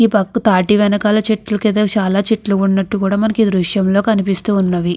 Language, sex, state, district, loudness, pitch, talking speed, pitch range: Telugu, female, Andhra Pradesh, Krishna, -15 LUFS, 205 Hz, 170 wpm, 195-215 Hz